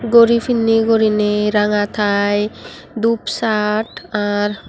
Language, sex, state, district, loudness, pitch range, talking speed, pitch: Chakma, female, Tripura, Unakoti, -16 LUFS, 210-225 Hz, 100 wpm, 215 Hz